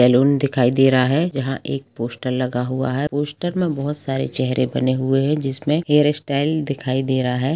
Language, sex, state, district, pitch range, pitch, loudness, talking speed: Hindi, female, Chhattisgarh, Rajnandgaon, 130-145 Hz, 135 Hz, -20 LUFS, 205 wpm